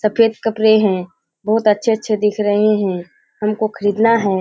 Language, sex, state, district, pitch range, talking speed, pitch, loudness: Hindi, female, Bihar, Kishanganj, 205-220 Hz, 150 wpm, 210 Hz, -16 LUFS